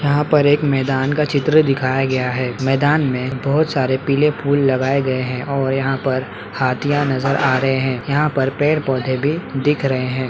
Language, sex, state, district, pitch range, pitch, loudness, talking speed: Hindi, male, Uttar Pradesh, Hamirpur, 130-145 Hz, 135 Hz, -18 LUFS, 185 wpm